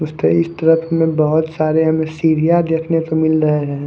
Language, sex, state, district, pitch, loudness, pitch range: Hindi, male, Haryana, Charkhi Dadri, 160 Hz, -15 LUFS, 155-165 Hz